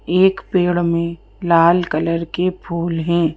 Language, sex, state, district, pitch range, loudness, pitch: Hindi, female, Madhya Pradesh, Bhopal, 165-180 Hz, -17 LUFS, 170 Hz